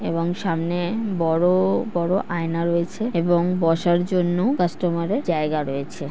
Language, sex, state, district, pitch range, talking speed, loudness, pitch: Bengali, female, West Bengal, North 24 Parganas, 165-185 Hz, 135 wpm, -22 LUFS, 175 Hz